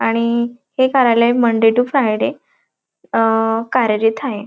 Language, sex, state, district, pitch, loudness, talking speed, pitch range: Marathi, female, Maharashtra, Dhule, 235 Hz, -16 LUFS, 120 wpm, 225-245 Hz